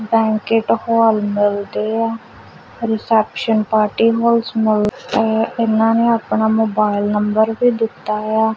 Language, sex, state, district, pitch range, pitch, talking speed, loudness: Punjabi, female, Punjab, Kapurthala, 215-225 Hz, 220 Hz, 125 wpm, -16 LUFS